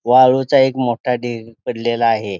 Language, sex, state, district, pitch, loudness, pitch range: Marathi, male, Maharashtra, Pune, 120 Hz, -16 LUFS, 115-130 Hz